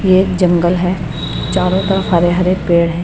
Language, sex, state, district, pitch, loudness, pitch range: Hindi, female, Chhattisgarh, Raipur, 180 Hz, -14 LUFS, 170-185 Hz